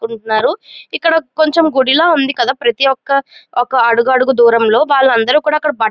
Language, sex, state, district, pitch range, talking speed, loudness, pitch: Telugu, female, Andhra Pradesh, Chittoor, 235-300 Hz, 160 wpm, -12 LUFS, 270 Hz